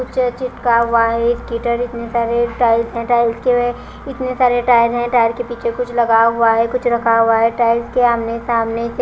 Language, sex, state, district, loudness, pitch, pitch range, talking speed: Hindi, female, Punjab, Kapurthala, -16 LUFS, 235 Hz, 230-245 Hz, 200 wpm